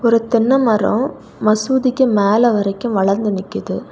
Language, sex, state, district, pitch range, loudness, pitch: Tamil, female, Tamil Nadu, Kanyakumari, 205-240 Hz, -16 LUFS, 220 Hz